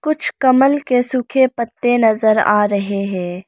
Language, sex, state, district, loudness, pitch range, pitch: Hindi, female, Arunachal Pradesh, Lower Dibang Valley, -15 LUFS, 205-260 Hz, 235 Hz